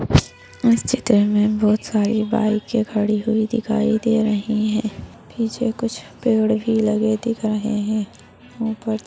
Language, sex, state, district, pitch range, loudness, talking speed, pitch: Hindi, female, Uttar Pradesh, Budaun, 215-225 Hz, -20 LUFS, 130 wpm, 220 Hz